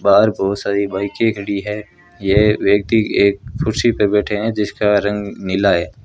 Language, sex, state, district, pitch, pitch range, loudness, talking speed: Hindi, female, Rajasthan, Bikaner, 105 Hz, 100-110 Hz, -17 LUFS, 170 wpm